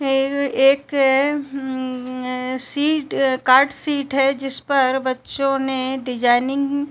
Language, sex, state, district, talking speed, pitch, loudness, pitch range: Hindi, female, Uttar Pradesh, Muzaffarnagar, 105 wpm, 270 Hz, -19 LUFS, 260-275 Hz